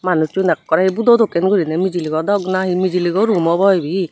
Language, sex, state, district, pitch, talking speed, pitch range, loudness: Chakma, female, Tripura, Unakoti, 185 Hz, 175 wpm, 175-195 Hz, -16 LUFS